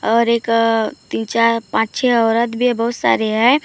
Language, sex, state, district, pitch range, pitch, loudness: Hindi, female, Maharashtra, Gondia, 225-235 Hz, 230 Hz, -16 LUFS